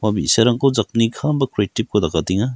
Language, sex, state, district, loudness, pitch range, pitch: Garo, male, Meghalaya, West Garo Hills, -18 LUFS, 105-125 Hz, 115 Hz